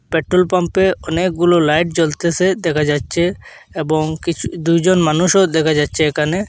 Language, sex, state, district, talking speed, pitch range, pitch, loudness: Bengali, male, Assam, Hailakandi, 130 wpm, 155-180 Hz, 170 Hz, -16 LUFS